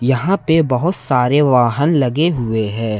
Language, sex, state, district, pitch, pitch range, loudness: Hindi, male, Jharkhand, Ranchi, 130 Hz, 120-160 Hz, -15 LUFS